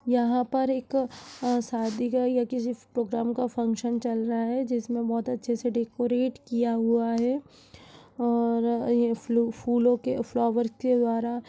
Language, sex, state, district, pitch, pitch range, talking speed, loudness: Hindi, female, Uttar Pradesh, Budaun, 240 Hz, 235-245 Hz, 155 wpm, -27 LUFS